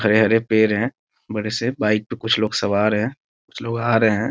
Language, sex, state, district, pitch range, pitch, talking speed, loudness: Hindi, male, Bihar, Muzaffarpur, 105-115 Hz, 110 Hz, 235 wpm, -20 LUFS